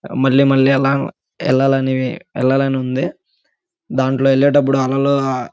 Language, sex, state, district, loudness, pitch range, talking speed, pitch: Telugu, male, Andhra Pradesh, Guntur, -16 LUFS, 130-140 Hz, 85 wpm, 135 Hz